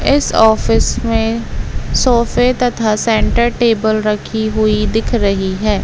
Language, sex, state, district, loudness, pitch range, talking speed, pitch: Hindi, female, Madhya Pradesh, Katni, -14 LUFS, 215-235 Hz, 125 wpm, 225 Hz